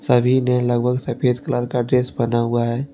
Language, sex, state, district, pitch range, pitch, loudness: Hindi, male, Jharkhand, Ranchi, 120-125 Hz, 125 Hz, -19 LUFS